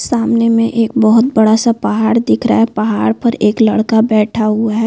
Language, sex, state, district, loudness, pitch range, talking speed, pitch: Hindi, female, Chhattisgarh, Bilaspur, -12 LUFS, 220-230 Hz, 210 wpm, 225 Hz